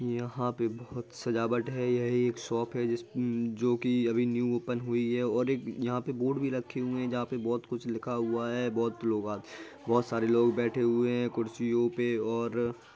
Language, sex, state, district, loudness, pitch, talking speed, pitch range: Hindi, male, Bihar, Jahanabad, -31 LUFS, 120 Hz, 215 wpm, 115-125 Hz